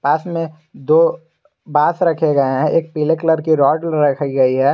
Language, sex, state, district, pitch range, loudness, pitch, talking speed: Hindi, male, Jharkhand, Garhwa, 145-165 Hz, -16 LUFS, 155 Hz, 190 wpm